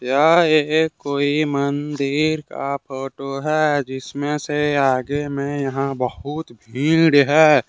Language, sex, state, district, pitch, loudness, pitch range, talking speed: Hindi, male, Jharkhand, Deoghar, 145 Hz, -19 LUFS, 135-150 Hz, 115 wpm